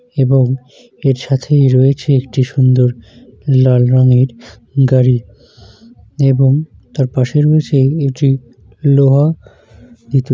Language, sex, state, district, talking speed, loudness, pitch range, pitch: Bengali, male, West Bengal, Jalpaiguri, 85 wpm, -13 LUFS, 125-135 Hz, 130 Hz